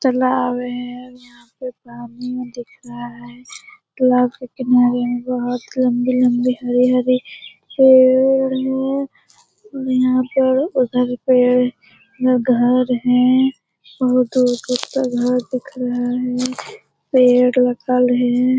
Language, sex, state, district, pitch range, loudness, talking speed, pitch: Hindi, female, Bihar, Lakhisarai, 245-255 Hz, -17 LUFS, 110 wpm, 250 Hz